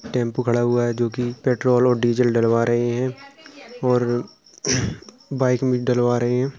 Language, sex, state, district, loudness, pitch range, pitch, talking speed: Hindi, male, Uttar Pradesh, Jalaun, -21 LUFS, 120-125 Hz, 125 Hz, 155 wpm